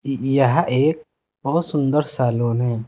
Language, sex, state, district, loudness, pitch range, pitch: Hindi, male, Uttar Pradesh, Saharanpur, -19 LUFS, 125-150 Hz, 135 Hz